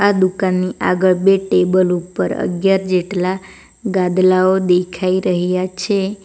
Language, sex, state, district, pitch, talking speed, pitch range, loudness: Gujarati, female, Gujarat, Valsad, 185 Hz, 105 wpm, 180-190 Hz, -16 LUFS